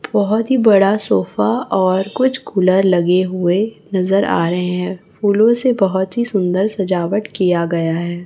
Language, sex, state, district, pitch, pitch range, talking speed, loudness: Hindi, female, Chhattisgarh, Raipur, 190 Hz, 180-210 Hz, 160 wpm, -16 LUFS